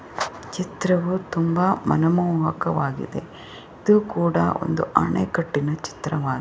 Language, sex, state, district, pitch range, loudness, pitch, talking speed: Kannada, female, Karnataka, Chamarajanagar, 150-185 Hz, -23 LUFS, 165 Hz, 75 wpm